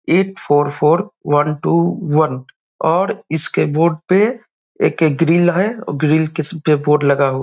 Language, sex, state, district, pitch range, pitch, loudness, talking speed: Hindi, male, Bihar, Vaishali, 150-175 Hz, 160 Hz, -16 LUFS, 170 wpm